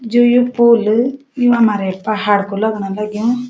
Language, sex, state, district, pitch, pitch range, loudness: Garhwali, female, Uttarakhand, Uttarkashi, 225 Hz, 210-240 Hz, -15 LUFS